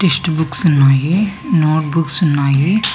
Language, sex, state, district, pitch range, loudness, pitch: Telugu, female, Andhra Pradesh, Visakhapatnam, 145-180 Hz, -14 LUFS, 160 Hz